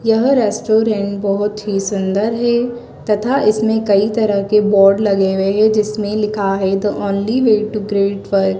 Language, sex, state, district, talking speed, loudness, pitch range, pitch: Hindi, female, Madhya Pradesh, Dhar, 175 wpm, -15 LUFS, 200-220 Hz, 210 Hz